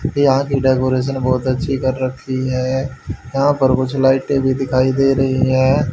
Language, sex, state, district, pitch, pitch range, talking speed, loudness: Hindi, male, Haryana, Rohtak, 130 Hz, 130-135 Hz, 170 wpm, -17 LUFS